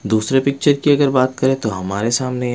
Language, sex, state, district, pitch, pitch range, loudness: Hindi, male, Bihar, West Champaran, 130 Hz, 115-140 Hz, -17 LUFS